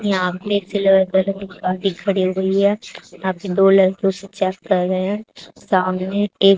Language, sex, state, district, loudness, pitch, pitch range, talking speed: Hindi, female, Haryana, Charkhi Dadri, -19 LUFS, 195 Hz, 185-195 Hz, 155 wpm